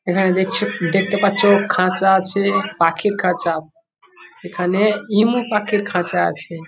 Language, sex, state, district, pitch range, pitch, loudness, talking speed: Bengali, male, West Bengal, Jhargram, 180-205 Hz, 190 Hz, -17 LUFS, 135 wpm